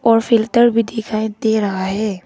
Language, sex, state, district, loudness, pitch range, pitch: Hindi, female, Arunachal Pradesh, Papum Pare, -16 LUFS, 210-230 Hz, 220 Hz